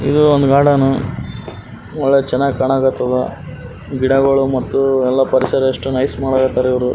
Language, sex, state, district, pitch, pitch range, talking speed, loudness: Kannada, male, Karnataka, Raichur, 135 Hz, 130-135 Hz, 120 wpm, -15 LUFS